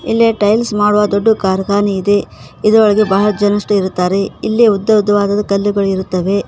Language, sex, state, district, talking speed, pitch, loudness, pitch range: Kannada, female, Karnataka, Koppal, 140 wpm, 205 Hz, -13 LUFS, 200-210 Hz